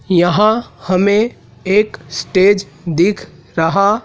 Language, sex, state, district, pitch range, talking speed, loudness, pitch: Hindi, male, Madhya Pradesh, Dhar, 175-210 Hz, 90 wpm, -15 LUFS, 195 Hz